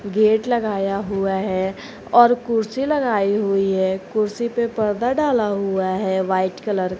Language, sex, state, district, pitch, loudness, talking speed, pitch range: Hindi, female, Jharkhand, Garhwa, 205 Hz, -20 LUFS, 155 wpm, 195-235 Hz